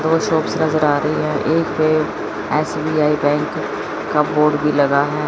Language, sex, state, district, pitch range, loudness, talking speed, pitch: Hindi, female, Chandigarh, Chandigarh, 150-155 Hz, -18 LUFS, 170 wpm, 150 Hz